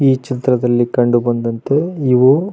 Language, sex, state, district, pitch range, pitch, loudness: Kannada, male, Karnataka, Raichur, 120-135 Hz, 125 Hz, -15 LUFS